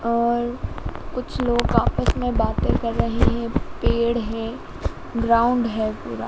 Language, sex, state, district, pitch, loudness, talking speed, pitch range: Hindi, female, Madhya Pradesh, Dhar, 235 Hz, -23 LUFS, 135 wpm, 225-240 Hz